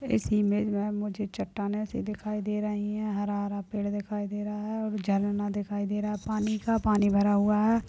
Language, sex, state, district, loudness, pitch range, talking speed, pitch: Hindi, female, Uttar Pradesh, Deoria, -29 LUFS, 205-210 Hz, 230 wpm, 210 Hz